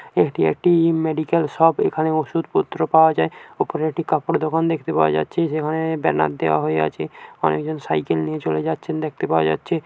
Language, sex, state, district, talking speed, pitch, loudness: Bengali, male, West Bengal, Paschim Medinipur, 175 wpm, 155 Hz, -20 LUFS